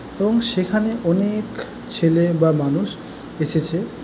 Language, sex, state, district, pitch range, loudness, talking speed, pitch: Bengali, male, West Bengal, Jalpaiguri, 165-215 Hz, -20 LUFS, 105 wpm, 175 Hz